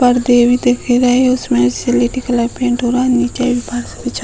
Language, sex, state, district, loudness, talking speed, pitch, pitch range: Hindi, female, Uttar Pradesh, Hamirpur, -14 LUFS, 225 wpm, 245 Hz, 240-250 Hz